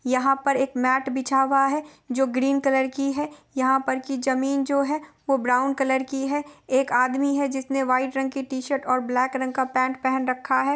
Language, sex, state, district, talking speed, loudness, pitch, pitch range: Hindi, female, Bihar, Gopalganj, 215 wpm, -23 LUFS, 265 Hz, 260-275 Hz